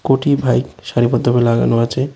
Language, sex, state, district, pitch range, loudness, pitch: Bengali, male, Tripura, West Tripura, 120-135 Hz, -15 LUFS, 125 Hz